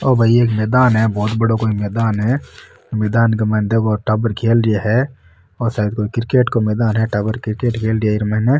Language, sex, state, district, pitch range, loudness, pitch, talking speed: Marwari, male, Rajasthan, Nagaur, 105-115 Hz, -17 LUFS, 110 Hz, 230 wpm